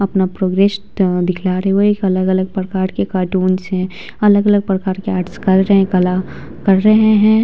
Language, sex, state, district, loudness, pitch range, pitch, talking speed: Hindi, female, Bihar, Vaishali, -15 LUFS, 185-200 Hz, 190 Hz, 175 wpm